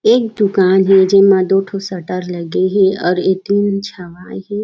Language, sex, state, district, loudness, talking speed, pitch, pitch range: Chhattisgarhi, female, Chhattisgarh, Raigarh, -14 LUFS, 180 wpm, 195 Hz, 185-200 Hz